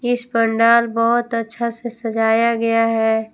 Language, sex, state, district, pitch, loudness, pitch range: Hindi, female, Jharkhand, Palamu, 230 Hz, -17 LUFS, 225-235 Hz